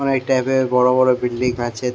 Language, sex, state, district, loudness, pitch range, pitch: Bengali, male, West Bengal, Jhargram, -18 LUFS, 125-130 Hz, 125 Hz